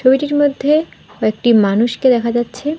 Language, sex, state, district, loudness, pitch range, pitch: Bengali, female, West Bengal, Alipurduar, -15 LUFS, 235-290 Hz, 255 Hz